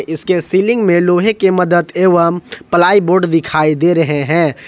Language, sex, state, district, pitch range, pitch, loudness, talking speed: Hindi, male, Jharkhand, Ranchi, 165-185 Hz, 175 Hz, -12 LUFS, 165 wpm